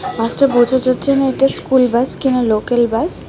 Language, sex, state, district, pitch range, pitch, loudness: Bengali, female, Tripura, West Tripura, 240-265 Hz, 255 Hz, -14 LUFS